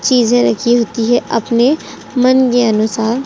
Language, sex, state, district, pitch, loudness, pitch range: Hindi, female, Uttar Pradesh, Jyotiba Phule Nagar, 240 Hz, -13 LUFS, 230-250 Hz